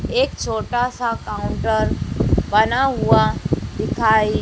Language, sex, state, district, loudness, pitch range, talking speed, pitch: Hindi, female, Madhya Pradesh, Dhar, -19 LUFS, 220-260 Hz, 80 wpm, 240 Hz